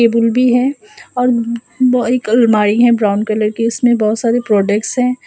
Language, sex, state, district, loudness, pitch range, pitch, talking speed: Hindi, female, Assam, Sonitpur, -14 LUFS, 215-250 Hz, 235 Hz, 180 wpm